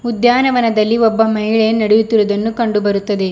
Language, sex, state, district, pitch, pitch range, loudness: Kannada, male, Karnataka, Bidar, 220 Hz, 210-230 Hz, -14 LUFS